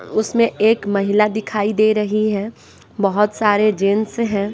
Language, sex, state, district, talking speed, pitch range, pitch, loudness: Hindi, female, Bihar, West Champaran, 145 wpm, 205-220 Hz, 210 Hz, -17 LUFS